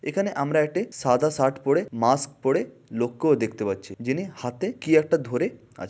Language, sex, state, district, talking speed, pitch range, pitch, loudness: Bengali, male, West Bengal, Malda, 175 wpm, 120-155 Hz, 135 Hz, -25 LUFS